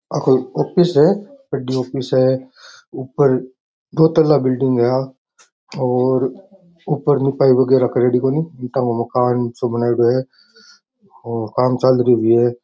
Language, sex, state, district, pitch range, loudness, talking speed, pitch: Rajasthani, male, Rajasthan, Nagaur, 125-145 Hz, -17 LUFS, 130 wpm, 130 Hz